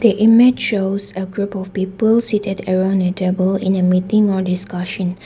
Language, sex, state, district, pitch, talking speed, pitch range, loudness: English, female, Nagaland, Dimapur, 190 Hz, 170 wpm, 185-205 Hz, -17 LUFS